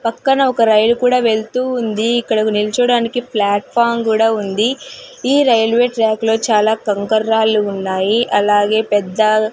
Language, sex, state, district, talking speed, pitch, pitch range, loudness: Telugu, female, Andhra Pradesh, Sri Satya Sai, 140 wpm, 225 Hz, 215-240 Hz, -15 LUFS